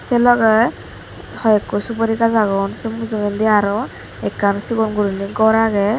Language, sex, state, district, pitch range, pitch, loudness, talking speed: Chakma, female, Tripura, Dhalai, 205-225 Hz, 220 Hz, -17 LUFS, 130 wpm